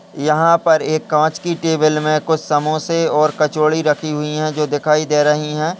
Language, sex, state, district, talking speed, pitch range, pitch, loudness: Hindi, male, Uttar Pradesh, Deoria, 195 wpm, 150-160 Hz, 155 Hz, -16 LUFS